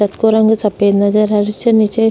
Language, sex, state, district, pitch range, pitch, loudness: Rajasthani, female, Rajasthan, Nagaur, 205-220 Hz, 210 Hz, -13 LUFS